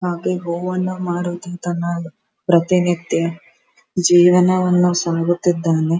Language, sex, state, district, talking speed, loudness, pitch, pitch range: Kannada, female, Karnataka, Dharwad, 70 wpm, -18 LUFS, 175 Hz, 170-180 Hz